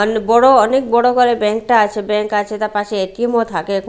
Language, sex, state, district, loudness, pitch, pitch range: Bengali, female, Odisha, Malkangiri, -15 LUFS, 215 Hz, 210-240 Hz